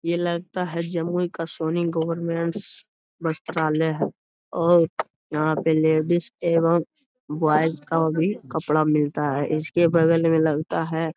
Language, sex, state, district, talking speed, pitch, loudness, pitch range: Hindi, male, Bihar, Jamui, 140 wpm, 165 Hz, -23 LUFS, 155-170 Hz